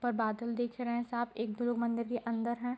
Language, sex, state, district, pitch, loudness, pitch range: Hindi, female, Bihar, Bhagalpur, 235 Hz, -35 LUFS, 235-240 Hz